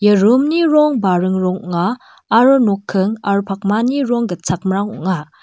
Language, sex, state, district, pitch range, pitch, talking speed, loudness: Garo, female, Meghalaya, West Garo Hills, 190-245 Hz, 205 Hz, 155 wpm, -16 LUFS